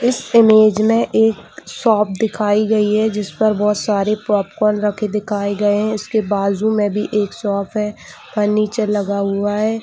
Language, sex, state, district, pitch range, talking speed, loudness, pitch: Hindi, female, Chhattisgarh, Raigarh, 205-215 Hz, 175 wpm, -17 LUFS, 210 Hz